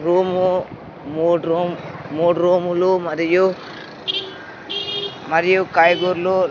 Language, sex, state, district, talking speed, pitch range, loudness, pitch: Telugu, male, Andhra Pradesh, Sri Satya Sai, 75 wpm, 170-185 Hz, -19 LUFS, 175 Hz